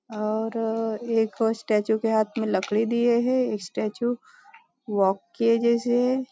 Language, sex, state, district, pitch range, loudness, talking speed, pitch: Hindi, female, Maharashtra, Nagpur, 215-240 Hz, -24 LUFS, 135 wpm, 225 Hz